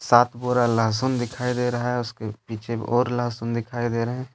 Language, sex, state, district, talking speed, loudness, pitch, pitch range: Hindi, male, Jharkhand, Deoghar, 205 wpm, -24 LUFS, 120 Hz, 115-125 Hz